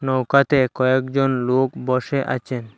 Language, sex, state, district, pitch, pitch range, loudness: Bengali, male, Assam, Hailakandi, 130 Hz, 130-135 Hz, -19 LUFS